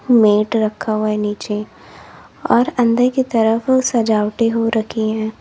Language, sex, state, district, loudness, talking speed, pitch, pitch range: Hindi, female, Uttar Pradesh, Lalitpur, -17 LUFS, 135 wpm, 225 Hz, 215-240 Hz